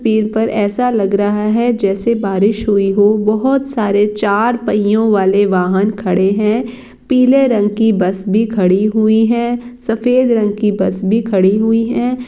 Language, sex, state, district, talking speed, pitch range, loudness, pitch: Hindi, female, Bihar, East Champaran, 165 wpm, 200-235 Hz, -14 LUFS, 215 Hz